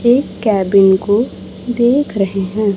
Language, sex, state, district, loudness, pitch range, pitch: Hindi, male, Chhattisgarh, Raipur, -14 LUFS, 195-240 Hz, 210 Hz